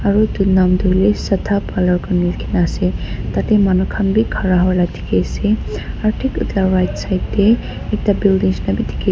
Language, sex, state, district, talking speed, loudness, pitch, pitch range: Nagamese, female, Nagaland, Dimapur, 205 wpm, -17 LUFS, 190 Hz, 180-205 Hz